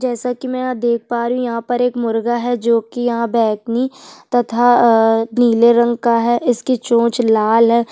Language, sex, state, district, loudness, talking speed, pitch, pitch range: Hindi, female, Chhattisgarh, Sukma, -16 LUFS, 205 wpm, 235 Hz, 230-245 Hz